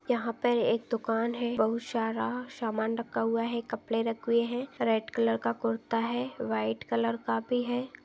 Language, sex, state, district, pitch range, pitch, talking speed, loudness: Hindi, female, Chhattisgarh, Balrampur, 220-240 Hz, 230 Hz, 185 wpm, -30 LUFS